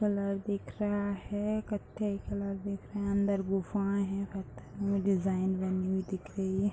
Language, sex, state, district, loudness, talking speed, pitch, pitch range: Hindi, female, Bihar, Madhepura, -33 LUFS, 170 wpm, 200 Hz, 195-205 Hz